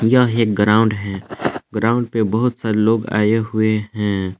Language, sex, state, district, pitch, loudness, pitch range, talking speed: Hindi, male, Jharkhand, Palamu, 110 Hz, -18 LUFS, 105-115 Hz, 165 wpm